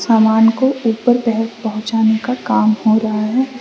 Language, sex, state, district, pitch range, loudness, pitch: Hindi, female, Mizoram, Aizawl, 220-245 Hz, -15 LUFS, 225 Hz